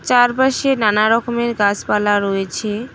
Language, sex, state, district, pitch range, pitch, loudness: Bengali, female, West Bengal, Cooch Behar, 205-245 Hz, 220 Hz, -16 LUFS